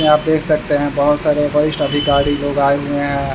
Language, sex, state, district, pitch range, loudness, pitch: Hindi, male, Bihar, Vaishali, 145-150 Hz, -16 LUFS, 145 Hz